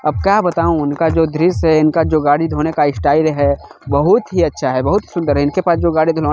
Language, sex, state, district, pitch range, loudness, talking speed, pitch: Hindi, male, Chhattisgarh, Bilaspur, 145-170 Hz, -15 LUFS, 255 wpm, 155 Hz